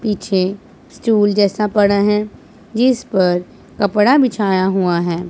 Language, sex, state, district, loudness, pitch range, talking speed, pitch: Hindi, male, Punjab, Pathankot, -16 LUFS, 190-215 Hz, 125 wpm, 205 Hz